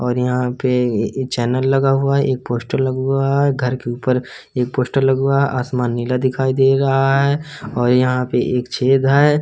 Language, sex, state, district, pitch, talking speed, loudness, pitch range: Hindi, male, Uttar Pradesh, Hamirpur, 130 Hz, 205 wpm, -17 LUFS, 125-135 Hz